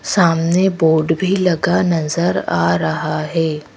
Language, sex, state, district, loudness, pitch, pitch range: Hindi, female, Madhya Pradesh, Bhopal, -16 LUFS, 165 Hz, 155-175 Hz